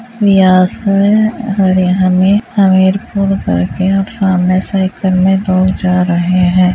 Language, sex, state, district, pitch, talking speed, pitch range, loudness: Hindi, female, Uttar Pradesh, Hamirpur, 190 Hz, 100 wpm, 185-200 Hz, -11 LUFS